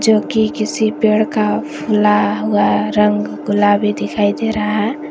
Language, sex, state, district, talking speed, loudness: Hindi, female, Jharkhand, Garhwa, 140 wpm, -15 LUFS